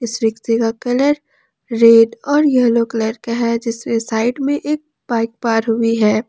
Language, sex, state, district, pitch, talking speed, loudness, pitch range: Hindi, female, Jharkhand, Ranchi, 230 Hz, 170 wpm, -16 LUFS, 225-250 Hz